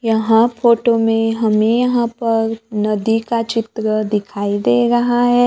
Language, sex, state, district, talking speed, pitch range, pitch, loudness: Hindi, female, Maharashtra, Gondia, 145 wpm, 215-235 Hz, 225 Hz, -16 LUFS